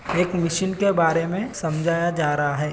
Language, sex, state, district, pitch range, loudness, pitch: Hindi, male, Bihar, Samastipur, 160-180 Hz, -22 LUFS, 170 Hz